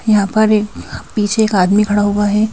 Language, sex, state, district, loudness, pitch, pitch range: Hindi, female, Madhya Pradesh, Bhopal, -14 LUFS, 210 Hz, 205-215 Hz